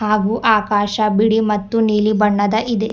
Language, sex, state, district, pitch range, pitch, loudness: Kannada, female, Karnataka, Bidar, 210-220 Hz, 215 Hz, -16 LUFS